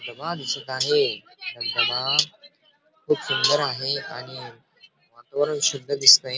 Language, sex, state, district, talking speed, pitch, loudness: Marathi, male, Maharashtra, Dhule, 105 wpm, 150 Hz, -22 LUFS